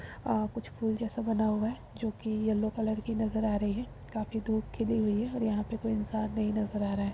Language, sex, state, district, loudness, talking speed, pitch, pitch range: Hindi, female, Uttar Pradesh, Jalaun, -32 LUFS, 250 wpm, 220 Hz, 215-225 Hz